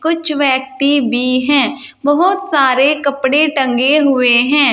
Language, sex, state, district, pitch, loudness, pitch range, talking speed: Hindi, female, Uttar Pradesh, Saharanpur, 280 Hz, -13 LUFS, 260-295 Hz, 125 wpm